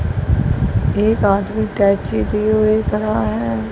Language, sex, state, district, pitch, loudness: Hindi, female, Punjab, Kapurthala, 200 Hz, -17 LUFS